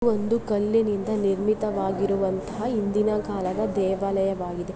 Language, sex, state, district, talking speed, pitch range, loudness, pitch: Kannada, female, Karnataka, Bellary, 90 wpm, 195-215 Hz, -25 LUFS, 205 Hz